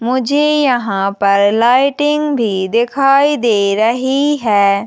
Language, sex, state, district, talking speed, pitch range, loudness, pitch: Hindi, female, Chhattisgarh, Jashpur, 110 wpm, 205-280 Hz, -13 LUFS, 240 Hz